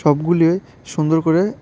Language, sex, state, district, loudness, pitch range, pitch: Bengali, male, Tripura, West Tripura, -17 LUFS, 160-180 Hz, 165 Hz